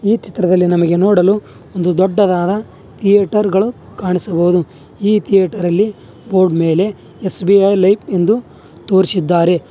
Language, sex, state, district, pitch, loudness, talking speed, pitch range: Kannada, male, Karnataka, Bangalore, 190 Hz, -14 LUFS, 110 wpm, 180-205 Hz